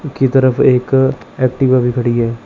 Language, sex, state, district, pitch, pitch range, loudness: Hindi, male, Chandigarh, Chandigarh, 130 Hz, 125-135 Hz, -13 LUFS